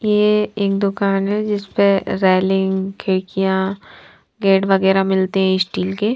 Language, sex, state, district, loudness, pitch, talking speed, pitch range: Hindi, female, Punjab, Fazilka, -17 LUFS, 195 Hz, 135 wpm, 190-200 Hz